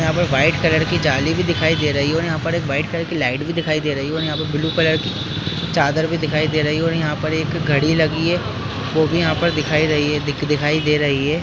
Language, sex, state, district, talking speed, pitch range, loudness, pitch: Hindi, male, Bihar, Jahanabad, 285 wpm, 150-160 Hz, -18 LUFS, 155 Hz